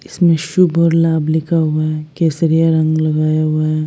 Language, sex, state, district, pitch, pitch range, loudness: Hindi, female, Bihar, West Champaran, 160 Hz, 155-165 Hz, -15 LUFS